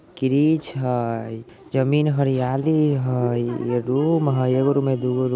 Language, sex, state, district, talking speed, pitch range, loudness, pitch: Bajjika, male, Bihar, Vaishali, 155 wpm, 125-140 Hz, -21 LUFS, 130 Hz